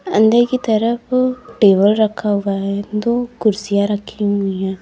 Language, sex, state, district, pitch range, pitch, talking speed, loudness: Hindi, female, Uttar Pradesh, Lalitpur, 200-235 Hz, 210 Hz, 150 wpm, -16 LUFS